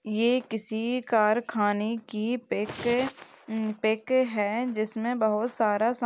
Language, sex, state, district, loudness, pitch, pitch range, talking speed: Hindi, female, Chhattisgarh, Sukma, -27 LUFS, 220 Hz, 215-240 Hz, 140 wpm